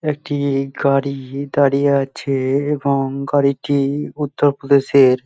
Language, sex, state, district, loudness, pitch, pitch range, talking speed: Bengali, male, West Bengal, Malda, -18 LUFS, 140 Hz, 135-145 Hz, 80 wpm